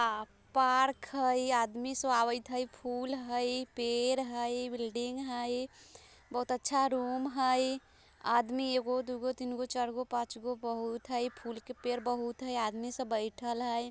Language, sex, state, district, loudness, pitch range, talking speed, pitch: Bajjika, female, Bihar, Vaishali, -34 LUFS, 240-255 Hz, 110 wpm, 245 Hz